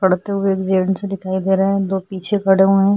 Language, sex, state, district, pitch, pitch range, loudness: Hindi, female, Goa, North and South Goa, 195 Hz, 190-195 Hz, -17 LUFS